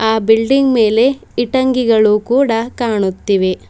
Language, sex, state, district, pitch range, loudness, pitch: Kannada, female, Karnataka, Bidar, 215-255 Hz, -14 LUFS, 225 Hz